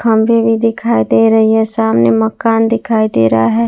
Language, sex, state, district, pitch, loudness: Hindi, female, Jharkhand, Palamu, 220 Hz, -12 LUFS